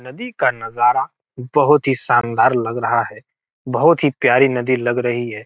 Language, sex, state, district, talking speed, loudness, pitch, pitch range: Hindi, male, Bihar, Gopalganj, 175 wpm, -17 LUFS, 125 Hz, 120-135 Hz